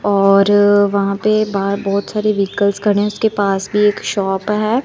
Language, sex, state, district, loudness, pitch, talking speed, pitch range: Hindi, female, Punjab, Kapurthala, -15 LUFS, 205 Hz, 175 wpm, 200-210 Hz